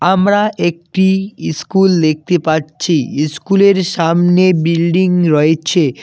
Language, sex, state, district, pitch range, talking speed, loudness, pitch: Bengali, male, West Bengal, Cooch Behar, 160-190 Hz, 90 wpm, -13 LUFS, 175 Hz